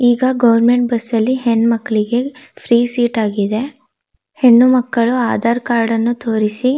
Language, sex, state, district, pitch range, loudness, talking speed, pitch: Kannada, female, Karnataka, Shimoga, 230-250 Hz, -14 LUFS, 115 wpm, 240 Hz